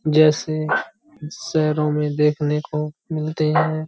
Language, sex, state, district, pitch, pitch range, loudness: Hindi, male, Uttar Pradesh, Hamirpur, 155 Hz, 150-155 Hz, -21 LUFS